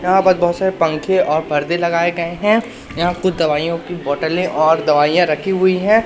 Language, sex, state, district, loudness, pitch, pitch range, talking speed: Hindi, male, Madhya Pradesh, Katni, -16 LUFS, 175 Hz, 155-185 Hz, 200 wpm